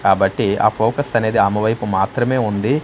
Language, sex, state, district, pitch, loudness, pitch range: Telugu, male, Andhra Pradesh, Manyam, 110 Hz, -17 LUFS, 105-125 Hz